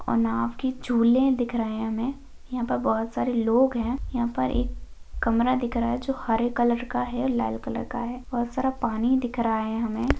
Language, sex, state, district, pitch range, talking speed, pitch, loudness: Hindi, female, Maharashtra, Pune, 230-255 Hz, 220 wpm, 240 Hz, -26 LUFS